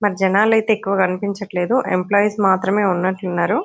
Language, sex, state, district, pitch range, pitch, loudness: Telugu, female, Telangana, Nalgonda, 190-210 Hz, 200 Hz, -18 LUFS